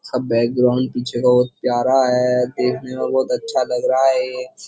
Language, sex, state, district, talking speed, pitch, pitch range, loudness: Hindi, male, Uttar Pradesh, Jyotiba Phule Nagar, 180 wpm, 125 Hz, 125-130 Hz, -18 LUFS